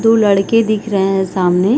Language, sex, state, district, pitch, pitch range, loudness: Hindi, female, Chhattisgarh, Bilaspur, 200 Hz, 190-220 Hz, -14 LUFS